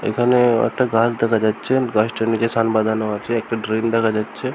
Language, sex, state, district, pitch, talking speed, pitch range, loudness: Bengali, male, West Bengal, Purulia, 115 Hz, 200 wpm, 110-120 Hz, -19 LUFS